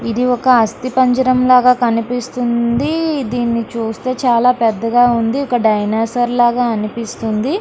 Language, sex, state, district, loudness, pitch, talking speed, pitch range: Telugu, female, Andhra Pradesh, Srikakulam, -15 LUFS, 245 Hz, 100 wpm, 230-255 Hz